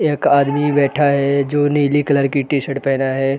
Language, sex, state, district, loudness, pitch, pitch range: Hindi, male, Uttar Pradesh, Gorakhpur, -16 LUFS, 140 Hz, 140-145 Hz